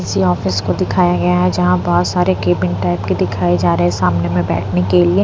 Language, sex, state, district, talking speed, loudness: Hindi, female, Punjab, Pathankot, 240 wpm, -15 LUFS